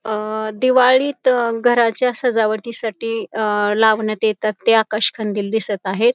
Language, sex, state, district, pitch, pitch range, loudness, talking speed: Marathi, female, Maharashtra, Pune, 220 Hz, 215-240 Hz, -17 LUFS, 100 wpm